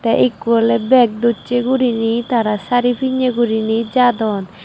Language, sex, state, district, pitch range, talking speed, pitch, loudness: Chakma, female, Tripura, Dhalai, 220-245 Hz, 140 wpm, 235 Hz, -16 LUFS